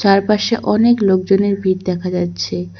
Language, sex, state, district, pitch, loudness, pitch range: Bengali, female, West Bengal, Cooch Behar, 195 Hz, -16 LUFS, 180-205 Hz